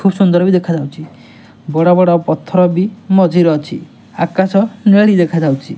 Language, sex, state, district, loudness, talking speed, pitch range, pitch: Odia, male, Odisha, Nuapada, -12 LUFS, 135 wpm, 160-190 Hz, 175 Hz